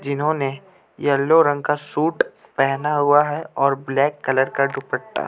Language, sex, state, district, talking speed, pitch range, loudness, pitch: Hindi, male, Jharkhand, Ranchi, 160 wpm, 135-150 Hz, -20 LUFS, 145 Hz